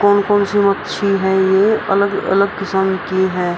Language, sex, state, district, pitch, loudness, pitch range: Hindi, female, Bihar, Araria, 195 Hz, -15 LUFS, 190-205 Hz